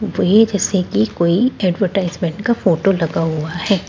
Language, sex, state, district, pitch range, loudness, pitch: Hindi, female, Bihar, Katihar, 170-210 Hz, -17 LUFS, 195 Hz